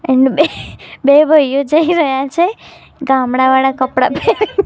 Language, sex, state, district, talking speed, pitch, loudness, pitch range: Gujarati, female, Gujarat, Gandhinagar, 130 wpm, 275 Hz, -13 LUFS, 265-315 Hz